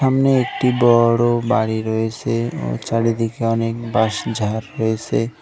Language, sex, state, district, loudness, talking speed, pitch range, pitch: Bengali, male, West Bengal, Cooch Behar, -19 LUFS, 110 wpm, 110-120 Hz, 115 Hz